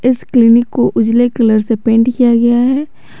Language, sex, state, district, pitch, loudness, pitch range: Hindi, male, Jharkhand, Garhwa, 240 Hz, -11 LUFS, 230-245 Hz